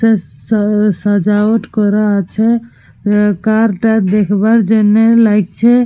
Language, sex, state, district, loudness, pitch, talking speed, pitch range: Bengali, female, Jharkhand, Jamtara, -12 LUFS, 210 Hz, 115 wpm, 205-225 Hz